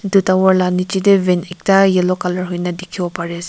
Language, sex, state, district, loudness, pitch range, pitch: Nagamese, female, Nagaland, Kohima, -16 LUFS, 180-190 Hz, 180 Hz